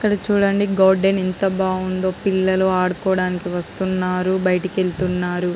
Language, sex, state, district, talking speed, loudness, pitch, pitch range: Telugu, female, Andhra Pradesh, Guntur, 110 wpm, -19 LUFS, 185 Hz, 185-190 Hz